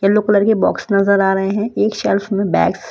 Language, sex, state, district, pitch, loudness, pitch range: Hindi, female, Delhi, New Delhi, 200 Hz, -16 LUFS, 200-210 Hz